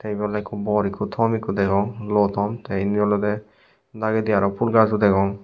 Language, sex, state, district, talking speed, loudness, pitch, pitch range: Chakma, male, Tripura, Unakoti, 200 wpm, -21 LUFS, 105 Hz, 100-110 Hz